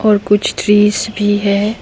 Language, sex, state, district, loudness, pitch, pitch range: Hindi, female, Arunachal Pradesh, Papum Pare, -13 LUFS, 205 Hz, 205-210 Hz